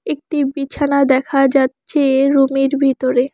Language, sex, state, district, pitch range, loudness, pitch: Bengali, female, West Bengal, Alipurduar, 270-280 Hz, -15 LUFS, 275 Hz